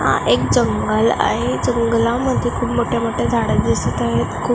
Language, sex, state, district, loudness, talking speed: Marathi, female, Maharashtra, Gondia, -18 LUFS, 160 wpm